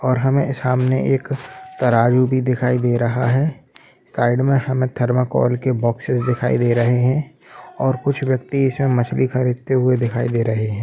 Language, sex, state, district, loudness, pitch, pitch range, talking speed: Hindi, male, Jharkhand, Sahebganj, -18 LUFS, 125 Hz, 120-130 Hz, 170 wpm